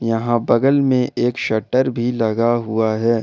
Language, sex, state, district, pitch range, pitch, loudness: Hindi, male, Jharkhand, Ranchi, 115-125 Hz, 120 Hz, -18 LUFS